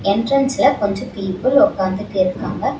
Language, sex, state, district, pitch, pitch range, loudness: Tamil, female, Tamil Nadu, Chennai, 205 Hz, 195-270 Hz, -18 LUFS